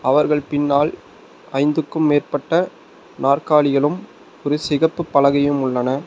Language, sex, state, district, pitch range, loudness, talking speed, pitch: Tamil, male, Tamil Nadu, Nilgiris, 140-150 Hz, -18 LUFS, 90 wpm, 145 Hz